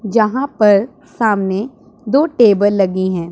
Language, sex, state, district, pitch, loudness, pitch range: Hindi, female, Punjab, Pathankot, 215 Hz, -14 LUFS, 200-245 Hz